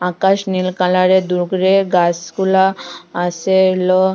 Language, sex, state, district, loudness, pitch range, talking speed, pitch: Bengali, female, Assam, Hailakandi, -15 LUFS, 180-190 Hz, 100 wpm, 185 Hz